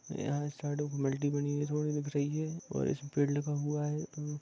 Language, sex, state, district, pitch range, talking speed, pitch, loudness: Hindi, male, Jharkhand, Sahebganj, 145-150 Hz, 230 wpm, 145 Hz, -34 LUFS